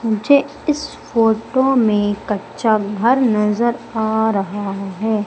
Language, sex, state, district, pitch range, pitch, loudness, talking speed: Hindi, female, Madhya Pradesh, Umaria, 210-240 Hz, 220 Hz, -17 LUFS, 115 wpm